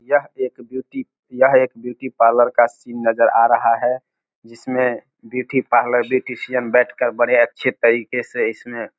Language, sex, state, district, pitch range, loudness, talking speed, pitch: Hindi, male, Bihar, Samastipur, 115-130 Hz, -18 LUFS, 165 wpm, 125 Hz